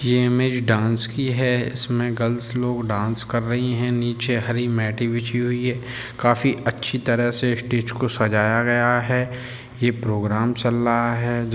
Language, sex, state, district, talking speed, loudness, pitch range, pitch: Hindi, male, Bihar, Gopalganj, 165 wpm, -21 LUFS, 115-125 Hz, 120 Hz